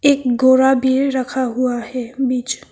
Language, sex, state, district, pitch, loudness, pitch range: Hindi, female, Arunachal Pradesh, Papum Pare, 260 Hz, -17 LUFS, 250-265 Hz